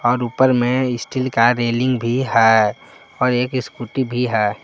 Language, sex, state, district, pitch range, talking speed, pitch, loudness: Hindi, male, Jharkhand, Palamu, 115-130 Hz, 195 wpm, 125 Hz, -18 LUFS